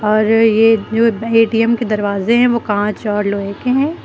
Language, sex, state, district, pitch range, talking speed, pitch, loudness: Hindi, female, Uttar Pradesh, Lucknow, 210-230 Hz, 195 wpm, 225 Hz, -14 LUFS